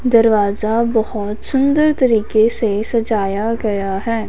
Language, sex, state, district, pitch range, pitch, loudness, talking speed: Hindi, female, Punjab, Fazilka, 210-230 Hz, 220 Hz, -16 LUFS, 110 wpm